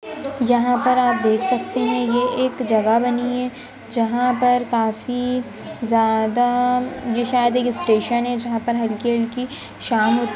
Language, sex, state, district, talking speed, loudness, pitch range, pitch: Hindi, female, Uttar Pradesh, Jyotiba Phule Nagar, 155 wpm, -20 LUFS, 230-250 Hz, 245 Hz